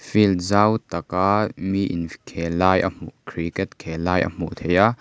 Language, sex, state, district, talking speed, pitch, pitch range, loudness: Mizo, male, Mizoram, Aizawl, 205 wpm, 90 Hz, 85-100 Hz, -22 LUFS